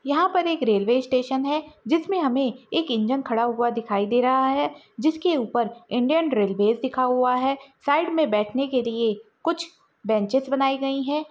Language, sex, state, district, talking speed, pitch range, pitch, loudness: Hindi, female, Maharashtra, Dhule, 175 wpm, 235-295 Hz, 265 Hz, -23 LUFS